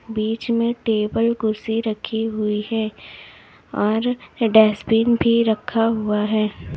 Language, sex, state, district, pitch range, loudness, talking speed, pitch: Hindi, female, Uttar Pradesh, Lalitpur, 215-230 Hz, -20 LUFS, 115 wpm, 225 Hz